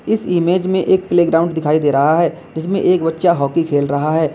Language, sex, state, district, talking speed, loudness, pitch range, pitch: Hindi, male, Uttar Pradesh, Lalitpur, 220 wpm, -15 LUFS, 155-180 Hz, 165 Hz